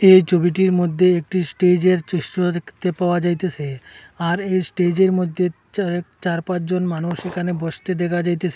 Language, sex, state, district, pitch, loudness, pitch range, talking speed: Bengali, male, Assam, Hailakandi, 180 Hz, -20 LUFS, 175-185 Hz, 145 wpm